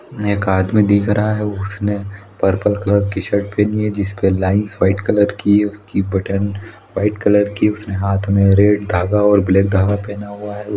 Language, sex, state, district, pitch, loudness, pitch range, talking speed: Hindi, male, Chhattisgarh, Raigarh, 100 Hz, -16 LUFS, 100-105 Hz, 180 wpm